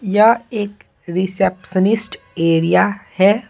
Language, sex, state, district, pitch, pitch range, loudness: Hindi, male, Bihar, Patna, 200 Hz, 185-215 Hz, -17 LUFS